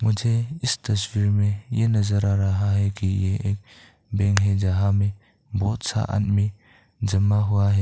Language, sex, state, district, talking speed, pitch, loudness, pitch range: Hindi, male, Arunachal Pradesh, Papum Pare, 175 wpm, 100 Hz, -23 LUFS, 100-110 Hz